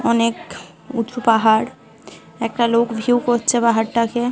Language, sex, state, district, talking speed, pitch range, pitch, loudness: Bengali, female, West Bengal, Malda, 140 wpm, 230-240 Hz, 235 Hz, -18 LUFS